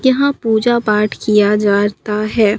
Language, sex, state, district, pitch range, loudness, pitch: Hindi, female, Bihar, Katihar, 210-235 Hz, -14 LUFS, 215 Hz